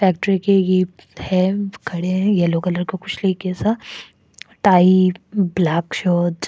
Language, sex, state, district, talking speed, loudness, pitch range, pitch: Hindi, female, Goa, North and South Goa, 150 wpm, -18 LUFS, 180-195 Hz, 185 Hz